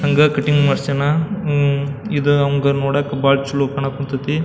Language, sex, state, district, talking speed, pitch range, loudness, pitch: Kannada, male, Karnataka, Belgaum, 135 wpm, 140-145 Hz, -17 LUFS, 140 Hz